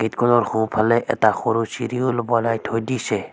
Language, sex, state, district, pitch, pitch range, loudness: Assamese, female, Assam, Sonitpur, 115 Hz, 110-120 Hz, -20 LUFS